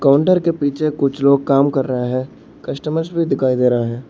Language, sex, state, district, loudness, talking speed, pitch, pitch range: Hindi, male, Arunachal Pradesh, Lower Dibang Valley, -17 LUFS, 220 wpm, 140 Hz, 130-155 Hz